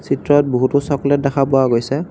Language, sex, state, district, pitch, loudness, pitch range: Assamese, male, Assam, Kamrup Metropolitan, 140 Hz, -16 LUFS, 135-145 Hz